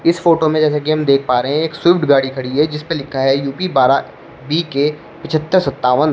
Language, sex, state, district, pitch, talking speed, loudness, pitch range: Hindi, male, Uttar Pradesh, Shamli, 150 Hz, 225 wpm, -16 LUFS, 135-165 Hz